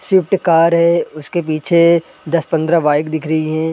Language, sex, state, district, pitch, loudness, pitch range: Hindi, male, Uttar Pradesh, Gorakhpur, 165 Hz, -15 LUFS, 155-170 Hz